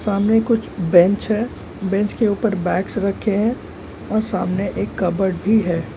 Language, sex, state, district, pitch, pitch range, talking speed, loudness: Hindi, male, Bihar, Darbhanga, 200 Hz, 185-220 Hz, 160 wpm, -19 LUFS